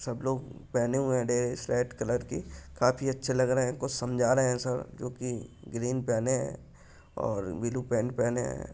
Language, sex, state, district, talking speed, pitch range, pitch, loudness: Hindi, male, Bihar, Lakhisarai, 200 wpm, 120-130 Hz, 125 Hz, -30 LUFS